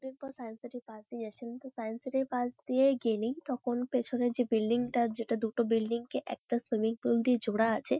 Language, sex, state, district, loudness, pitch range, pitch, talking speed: Bengali, female, West Bengal, Kolkata, -32 LUFS, 225-250 Hz, 240 Hz, 225 wpm